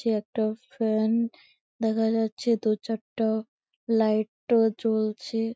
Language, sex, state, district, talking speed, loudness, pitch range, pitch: Bengali, female, West Bengal, Malda, 110 wpm, -26 LUFS, 220-230 Hz, 225 Hz